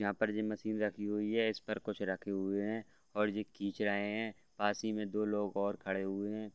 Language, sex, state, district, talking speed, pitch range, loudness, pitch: Hindi, male, Bihar, Gopalganj, 255 wpm, 100-110 Hz, -37 LUFS, 105 Hz